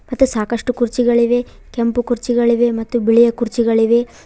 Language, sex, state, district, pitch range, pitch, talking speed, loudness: Kannada, female, Karnataka, Koppal, 235-245 Hz, 235 Hz, 110 wpm, -16 LUFS